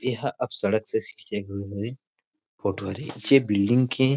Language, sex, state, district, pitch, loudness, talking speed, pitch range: Chhattisgarhi, male, Chhattisgarh, Rajnandgaon, 110 Hz, -26 LUFS, 100 wpm, 100-135 Hz